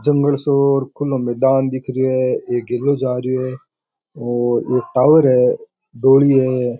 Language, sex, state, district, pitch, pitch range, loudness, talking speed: Rajasthani, male, Rajasthan, Churu, 130 Hz, 125-140 Hz, -16 LUFS, 170 wpm